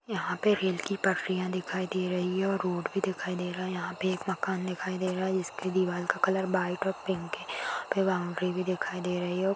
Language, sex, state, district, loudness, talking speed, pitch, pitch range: Hindi, female, Maharashtra, Chandrapur, -31 LUFS, 225 wpm, 185 Hz, 180-190 Hz